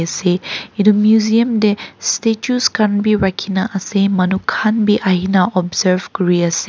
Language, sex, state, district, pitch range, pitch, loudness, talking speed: Nagamese, female, Nagaland, Kohima, 185-215 Hz, 200 Hz, -15 LUFS, 135 wpm